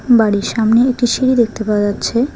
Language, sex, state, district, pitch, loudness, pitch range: Bengali, female, West Bengal, Alipurduar, 230 Hz, -14 LUFS, 215-245 Hz